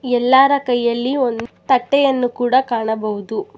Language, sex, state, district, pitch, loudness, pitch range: Kannada, female, Karnataka, Bangalore, 245 Hz, -17 LUFS, 235-265 Hz